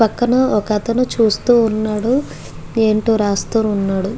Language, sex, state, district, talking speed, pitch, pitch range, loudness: Telugu, female, Andhra Pradesh, Guntur, 115 wpm, 220 Hz, 210-235 Hz, -16 LUFS